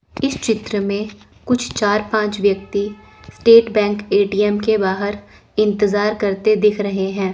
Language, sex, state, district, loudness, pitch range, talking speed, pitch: Hindi, female, Chandigarh, Chandigarh, -17 LUFS, 200-215 Hz, 140 wpm, 205 Hz